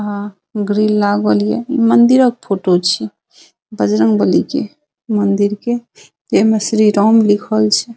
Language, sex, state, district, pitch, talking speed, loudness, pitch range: Maithili, female, Bihar, Saharsa, 210 Hz, 135 wpm, -14 LUFS, 195-230 Hz